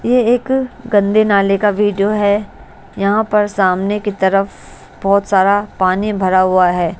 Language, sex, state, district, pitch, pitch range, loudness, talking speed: Hindi, female, Bihar, West Champaran, 200 Hz, 190-210 Hz, -14 LUFS, 155 wpm